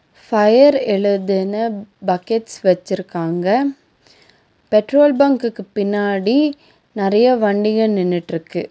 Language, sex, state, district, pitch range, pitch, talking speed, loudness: Tamil, female, Tamil Nadu, Nilgiris, 195-235 Hz, 210 Hz, 70 wpm, -17 LUFS